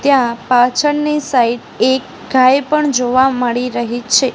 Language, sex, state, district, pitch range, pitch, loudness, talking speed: Gujarati, female, Gujarat, Gandhinagar, 245-275 Hz, 255 Hz, -14 LUFS, 140 wpm